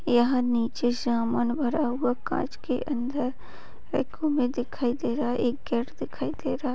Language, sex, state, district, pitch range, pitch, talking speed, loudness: Hindi, female, Maharashtra, Dhule, 240-270 Hz, 250 Hz, 160 wpm, -27 LUFS